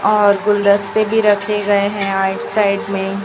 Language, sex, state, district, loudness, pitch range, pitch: Hindi, male, Chhattisgarh, Raipur, -15 LUFS, 200-210 Hz, 205 Hz